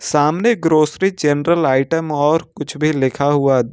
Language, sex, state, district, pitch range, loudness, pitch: Hindi, male, Jharkhand, Ranchi, 145-165 Hz, -16 LUFS, 150 Hz